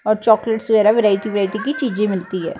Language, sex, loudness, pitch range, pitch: Punjabi, female, -17 LUFS, 205-225 Hz, 215 Hz